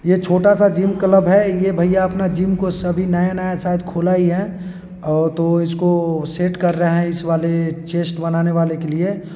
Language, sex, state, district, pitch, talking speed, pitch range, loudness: Hindi, male, Bihar, East Champaran, 175 Hz, 200 wpm, 170-185 Hz, -17 LUFS